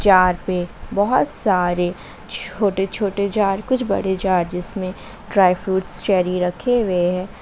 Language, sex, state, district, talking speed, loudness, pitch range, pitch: Hindi, female, Jharkhand, Garhwa, 140 wpm, -20 LUFS, 180-200 Hz, 190 Hz